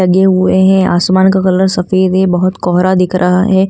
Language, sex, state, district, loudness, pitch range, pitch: Hindi, female, Delhi, New Delhi, -10 LUFS, 180-190 Hz, 185 Hz